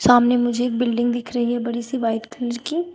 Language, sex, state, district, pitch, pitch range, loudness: Hindi, female, Uttar Pradesh, Shamli, 240 Hz, 235-245 Hz, -21 LUFS